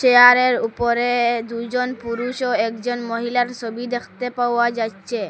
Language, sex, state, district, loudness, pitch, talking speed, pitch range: Bengali, female, Assam, Hailakandi, -20 LUFS, 240 Hz, 135 wpm, 235-245 Hz